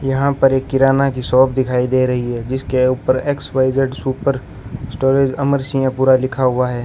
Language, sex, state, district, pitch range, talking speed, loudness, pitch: Hindi, male, Rajasthan, Bikaner, 130-135 Hz, 185 wpm, -16 LUFS, 130 Hz